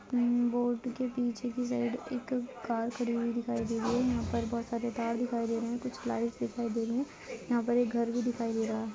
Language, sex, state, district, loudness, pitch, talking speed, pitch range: Hindi, female, Goa, North and South Goa, -33 LUFS, 240 Hz, 255 wpm, 230-245 Hz